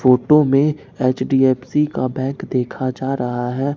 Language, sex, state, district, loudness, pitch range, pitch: Hindi, male, Bihar, Katihar, -18 LUFS, 130-140 Hz, 130 Hz